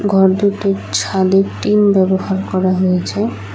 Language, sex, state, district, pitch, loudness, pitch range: Bengali, female, West Bengal, Alipurduar, 190 Hz, -15 LUFS, 185-195 Hz